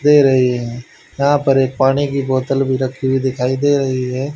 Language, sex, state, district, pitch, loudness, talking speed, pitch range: Hindi, male, Haryana, Charkhi Dadri, 135 Hz, -16 LUFS, 220 wpm, 130-140 Hz